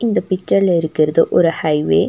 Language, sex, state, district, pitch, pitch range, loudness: Tamil, female, Tamil Nadu, Nilgiris, 165 Hz, 155-185 Hz, -16 LUFS